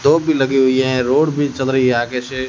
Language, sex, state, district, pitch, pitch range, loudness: Hindi, male, Rajasthan, Jaisalmer, 130 Hz, 130-135 Hz, -16 LUFS